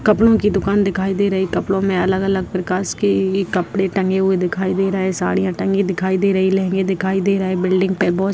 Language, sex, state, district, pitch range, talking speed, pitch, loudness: Hindi, female, Bihar, Jahanabad, 190-195 Hz, 230 wpm, 190 Hz, -18 LUFS